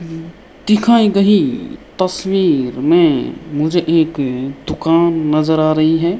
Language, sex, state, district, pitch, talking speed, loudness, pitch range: Hindi, male, Rajasthan, Bikaner, 170 Hz, 105 wpm, -14 LUFS, 155-210 Hz